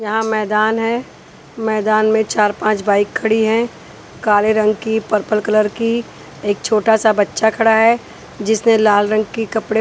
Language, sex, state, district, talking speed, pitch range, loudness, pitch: Hindi, female, Punjab, Pathankot, 170 wpm, 210-220 Hz, -16 LUFS, 220 Hz